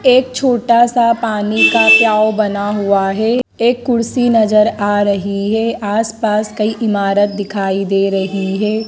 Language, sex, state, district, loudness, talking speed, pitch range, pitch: Hindi, female, Madhya Pradesh, Dhar, -14 LUFS, 150 wpm, 200-230 Hz, 215 Hz